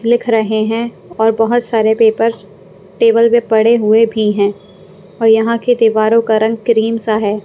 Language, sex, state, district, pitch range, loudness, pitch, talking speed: Hindi, female, Punjab, Pathankot, 215-230 Hz, -13 LUFS, 225 Hz, 175 wpm